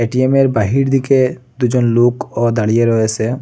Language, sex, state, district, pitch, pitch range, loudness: Bengali, male, Assam, Hailakandi, 125 Hz, 115-130 Hz, -14 LUFS